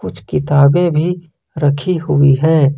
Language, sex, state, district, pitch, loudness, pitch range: Hindi, male, Jharkhand, Ranchi, 155 Hz, -14 LUFS, 145-170 Hz